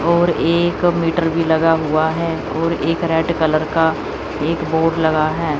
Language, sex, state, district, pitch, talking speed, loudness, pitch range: Hindi, female, Chandigarh, Chandigarh, 165 Hz, 170 wpm, -17 LUFS, 160-170 Hz